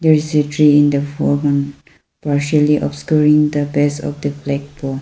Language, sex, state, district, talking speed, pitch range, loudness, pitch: English, female, Arunachal Pradesh, Lower Dibang Valley, 165 wpm, 145-150 Hz, -16 LUFS, 145 Hz